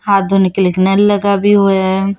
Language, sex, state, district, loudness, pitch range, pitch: Hindi, female, Chhattisgarh, Raipur, -12 LUFS, 190-200 Hz, 195 Hz